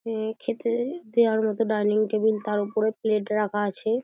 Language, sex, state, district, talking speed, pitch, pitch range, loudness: Bengali, female, West Bengal, Dakshin Dinajpur, 150 wpm, 220 Hz, 210-225 Hz, -25 LUFS